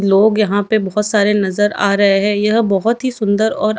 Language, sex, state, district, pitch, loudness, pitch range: Hindi, female, Chhattisgarh, Raipur, 210 Hz, -15 LUFS, 200-220 Hz